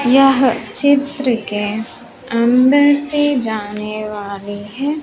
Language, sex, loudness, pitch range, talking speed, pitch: Hindi, female, -16 LUFS, 215-280 Hz, 95 wpm, 245 Hz